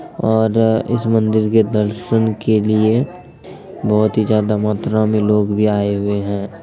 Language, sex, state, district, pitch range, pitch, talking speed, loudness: Hindi, male, Bihar, Begusarai, 105-110 Hz, 110 Hz, 155 wpm, -16 LUFS